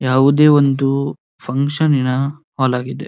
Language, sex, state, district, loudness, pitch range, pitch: Kannada, male, Karnataka, Dharwad, -16 LUFS, 130-145 Hz, 135 Hz